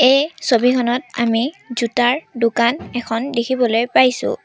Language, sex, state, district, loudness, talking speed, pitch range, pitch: Assamese, female, Assam, Sonitpur, -17 LUFS, 110 wpm, 235-260 Hz, 245 Hz